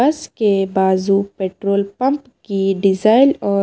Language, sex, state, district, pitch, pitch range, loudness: Hindi, female, Himachal Pradesh, Shimla, 200 Hz, 195-245 Hz, -17 LUFS